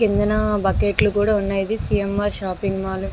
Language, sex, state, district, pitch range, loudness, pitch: Telugu, female, Andhra Pradesh, Visakhapatnam, 195-210 Hz, -21 LUFS, 205 Hz